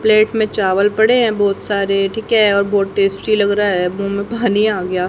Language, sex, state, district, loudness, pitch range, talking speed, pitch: Hindi, female, Haryana, Rohtak, -15 LUFS, 195-215 Hz, 225 wpm, 205 Hz